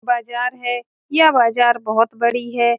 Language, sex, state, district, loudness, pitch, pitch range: Hindi, female, Bihar, Saran, -17 LUFS, 240 Hz, 235-245 Hz